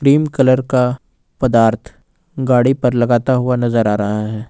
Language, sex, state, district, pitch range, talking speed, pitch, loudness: Hindi, male, Jharkhand, Ranchi, 115-130 Hz, 160 wpm, 125 Hz, -15 LUFS